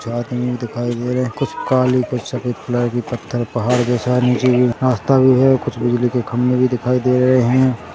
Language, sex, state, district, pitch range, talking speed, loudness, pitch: Hindi, male, Chhattisgarh, Rajnandgaon, 120-125 Hz, 235 wpm, -17 LUFS, 125 Hz